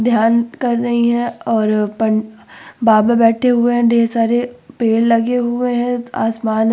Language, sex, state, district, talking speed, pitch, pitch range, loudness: Hindi, female, Uttar Pradesh, Muzaffarnagar, 160 wpm, 235 Hz, 225-240 Hz, -15 LUFS